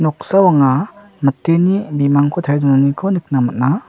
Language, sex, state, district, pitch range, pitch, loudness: Garo, male, Meghalaya, West Garo Hills, 140-185 Hz, 150 Hz, -15 LUFS